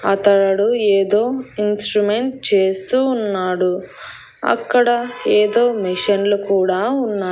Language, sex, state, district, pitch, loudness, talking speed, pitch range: Telugu, female, Andhra Pradesh, Annamaya, 205 Hz, -17 LUFS, 80 wpm, 195-240 Hz